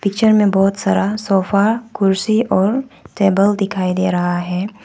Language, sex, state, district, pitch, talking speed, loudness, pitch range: Hindi, female, Arunachal Pradesh, Papum Pare, 200 Hz, 150 wpm, -16 LUFS, 190-210 Hz